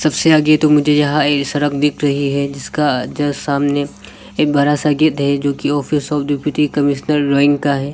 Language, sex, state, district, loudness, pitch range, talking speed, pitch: Hindi, male, Arunachal Pradesh, Lower Dibang Valley, -15 LUFS, 140-150 Hz, 210 wpm, 145 Hz